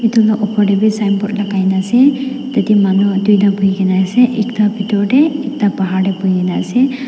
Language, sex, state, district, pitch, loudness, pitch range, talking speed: Nagamese, female, Nagaland, Dimapur, 210 Hz, -14 LUFS, 195-240 Hz, 205 wpm